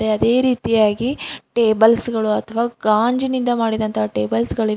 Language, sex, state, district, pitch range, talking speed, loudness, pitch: Kannada, female, Karnataka, Bidar, 215-240 Hz, 115 wpm, -18 LUFS, 225 Hz